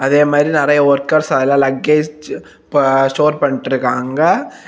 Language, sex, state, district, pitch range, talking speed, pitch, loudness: Tamil, male, Tamil Nadu, Kanyakumari, 135-150 Hz, 115 wpm, 145 Hz, -14 LUFS